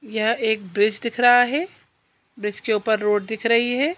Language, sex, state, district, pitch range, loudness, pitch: Hindi, female, Chhattisgarh, Sukma, 215-245 Hz, -20 LUFS, 225 Hz